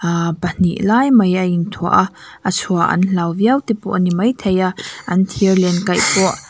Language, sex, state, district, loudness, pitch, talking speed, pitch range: Mizo, female, Mizoram, Aizawl, -16 LUFS, 185 Hz, 205 wpm, 180-205 Hz